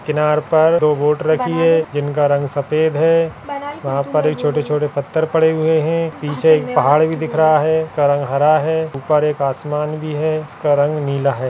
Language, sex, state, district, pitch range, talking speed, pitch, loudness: Hindi, male, Uttarakhand, Tehri Garhwal, 145-160 Hz, 200 wpm, 150 Hz, -16 LUFS